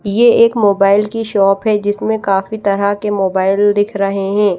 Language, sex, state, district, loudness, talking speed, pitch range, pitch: Hindi, female, Odisha, Malkangiri, -14 LUFS, 185 wpm, 195-215 Hz, 205 Hz